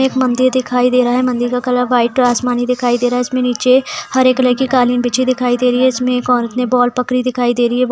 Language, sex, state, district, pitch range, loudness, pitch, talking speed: Hindi, female, Bihar, Purnia, 245-255 Hz, -14 LUFS, 250 Hz, 295 wpm